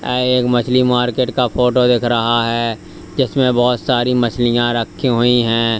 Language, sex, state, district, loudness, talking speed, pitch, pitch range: Hindi, male, Uttar Pradesh, Lalitpur, -15 LUFS, 165 wpm, 125 Hz, 120-125 Hz